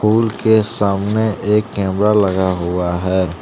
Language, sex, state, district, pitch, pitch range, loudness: Hindi, male, Jharkhand, Deoghar, 100 Hz, 95-105 Hz, -16 LUFS